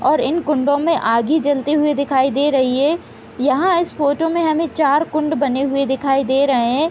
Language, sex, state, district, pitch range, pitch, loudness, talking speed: Hindi, female, Bihar, Gopalganj, 270-310 Hz, 285 Hz, -17 LUFS, 210 wpm